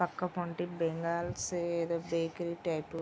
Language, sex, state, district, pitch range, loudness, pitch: Telugu, female, Andhra Pradesh, Srikakulam, 165-175 Hz, -35 LUFS, 170 Hz